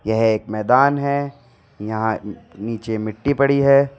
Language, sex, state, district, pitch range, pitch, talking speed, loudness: Hindi, male, Uttar Pradesh, Lalitpur, 110-140 Hz, 115 Hz, 135 wpm, -19 LUFS